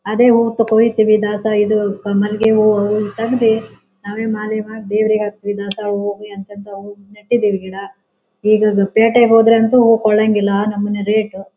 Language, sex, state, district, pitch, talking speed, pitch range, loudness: Kannada, female, Karnataka, Shimoga, 210 Hz, 170 wpm, 205-220 Hz, -15 LUFS